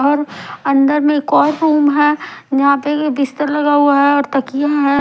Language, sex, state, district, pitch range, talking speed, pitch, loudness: Hindi, female, Himachal Pradesh, Shimla, 280-295 Hz, 190 wpm, 285 Hz, -14 LUFS